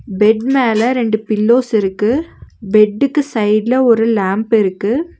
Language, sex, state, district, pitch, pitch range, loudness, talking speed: Tamil, female, Tamil Nadu, Nilgiris, 220 Hz, 210-250 Hz, -14 LUFS, 115 wpm